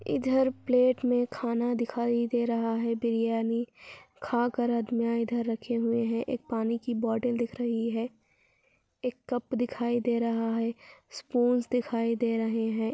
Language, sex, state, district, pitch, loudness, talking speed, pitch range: Hindi, female, Andhra Pradesh, Anantapur, 235 Hz, -29 LUFS, 160 wpm, 230-245 Hz